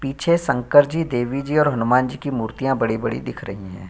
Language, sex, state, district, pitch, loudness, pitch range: Hindi, male, Bihar, Bhagalpur, 130 Hz, -20 LUFS, 115-145 Hz